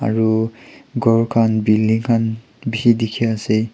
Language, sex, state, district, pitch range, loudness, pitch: Nagamese, male, Nagaland, Kohima, 110-115 Hz, -18 LUFS, 115 Hz